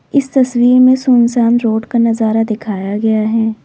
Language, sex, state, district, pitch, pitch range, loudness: Hindi, female, Uttar Pradesh, Lalitpur, 230 Hz, 220-250 Hz, -12 LUFS